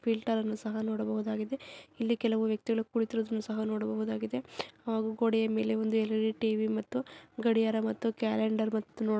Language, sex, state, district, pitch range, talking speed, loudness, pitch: Kannada, female, Karnataka, Dharwad, 220-225 Hz, 135 wpm, -32 LUFS, 220 Hz